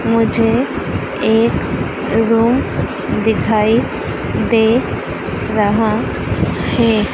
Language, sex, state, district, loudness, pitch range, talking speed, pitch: Hindi, female, Madhya Pradesh, Dhar, -16 LUFS, 220-230 Hz, 60 wpm, 225 Hz